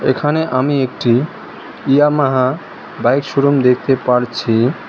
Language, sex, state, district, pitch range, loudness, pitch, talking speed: Bengali, male, West Bengal, Cooch Behar, 125-145 Hz, -15 LUFS, 135 Hz, 100 wpm